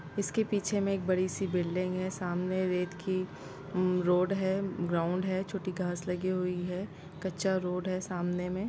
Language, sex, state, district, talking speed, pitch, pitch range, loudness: Hindi, female, Chhattisgarh, Kabirdham, 170 wpm, 185 Hz, 180-190 Hz, -32 LUFS